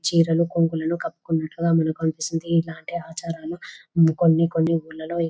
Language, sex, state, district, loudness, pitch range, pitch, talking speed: Telugu, female, Telangana, Nalgonda, -23 LUFS, 160-170 Hz, 165 Hz, 125 wpm